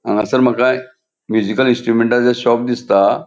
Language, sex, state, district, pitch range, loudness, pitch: Konkani, male, Goa, North and South Goa, 120-130 Hz, -15 LUFS, 125 Hz